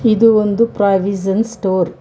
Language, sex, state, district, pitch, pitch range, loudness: Kannada, female, Karnataka, Bangalore, 205 Hz, 195-225 Hz, -15 LUFS